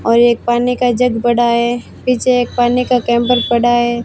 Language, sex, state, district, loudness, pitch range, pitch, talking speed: Hindi, female, Rajasthan, Barmer, -14 LUFS, 240-250 Hz, 240 Hz, 205 wpm